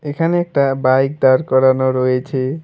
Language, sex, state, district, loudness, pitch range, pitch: Bengali, male, West Bengal, Alipurduar, -15 LUFS, 130-145 Hz, 130 Hz